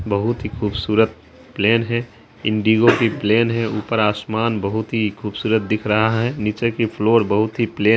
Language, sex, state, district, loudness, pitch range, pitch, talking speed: Hindi, female, Bihar, Araria, -19 LUFS, 105-115 Hz, 110 Hz, 180 wpm